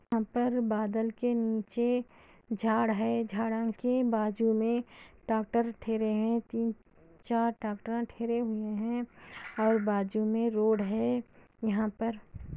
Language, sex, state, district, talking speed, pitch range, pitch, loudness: Hindi, female, Andhra Pradesh, Anantapur, 125 wpm, 220-235 Hz, 225 Hz, -31 LUFS